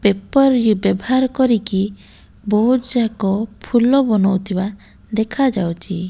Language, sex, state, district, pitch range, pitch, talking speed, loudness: Odia, female, Odisha, Malkangiri, 195-250 Hz, 215 Hz, 90 wpm, -17 LUFS